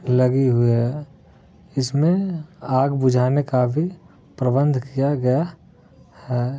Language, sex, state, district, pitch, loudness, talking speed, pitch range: Hindi, male, Bihar, Muzaffarpur, 135 Hz, -21 LUFS, 110 wpm, 125-150 Hz